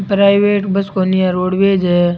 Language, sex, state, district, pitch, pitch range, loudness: Rajasthani, male, Rajasthan, Churu, 190 Hz, 185-195 Hz, -14 LUFS